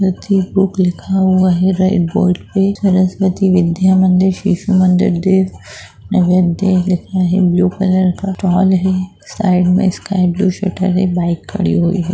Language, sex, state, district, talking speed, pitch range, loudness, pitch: Hindi, female, Bihar, Sitamarhi, 155 wpm, 180-190 Hz, -14 LUFS, 185 Hz